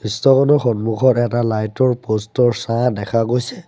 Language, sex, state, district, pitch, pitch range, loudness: Assamese, male, Assam, Sonitpur, 120 Hz, 110-125 Hz, -17 LUFS